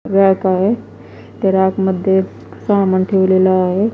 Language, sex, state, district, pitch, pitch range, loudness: Marathi, female, Maharashtra, Washim, 190 Hz, 185-195 Hz, -15 LUFS